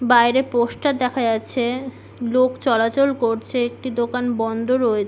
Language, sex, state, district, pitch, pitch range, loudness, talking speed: Bengali, female, West Bengal, Malda, 245 Hz, 235-255 Hz, -20 LUFS, 140 wpm